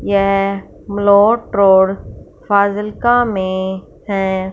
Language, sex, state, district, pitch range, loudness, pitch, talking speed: Hindi, female, Punjab, Fazilka, 190-205 Hz, -14 LUFS, 200 Hz, 55 wpm